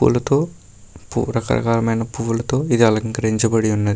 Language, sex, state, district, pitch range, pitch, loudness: Telugu, male, Karnataka, Bellary, 110-120 Hz, 115 Hz, -19 LUFS